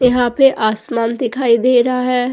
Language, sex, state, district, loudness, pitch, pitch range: Hindi, female, Goa, North and South Goa, -15 LUFS, 245 Hz, 235-255 Hz